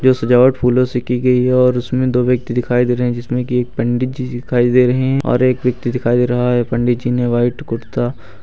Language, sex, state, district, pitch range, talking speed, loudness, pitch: Hindi, male, Uttar Pradesh, Lucknow, 120-125 Hz, 240 wpm, -16 LUFS, 125 Hz